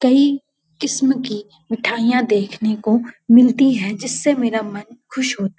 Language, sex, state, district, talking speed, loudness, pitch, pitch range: Hindi, female, Uttarakhand, Uttarkashi, 150 wpm, -17 LUFS, 235 Hz, 215-260 Hz